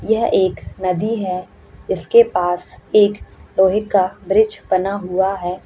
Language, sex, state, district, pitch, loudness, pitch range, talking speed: Hindi, female, Uttarakhand, Uttarkashi, 190 Hz, -18 LUFS, 185-210 Hz, 150 wpm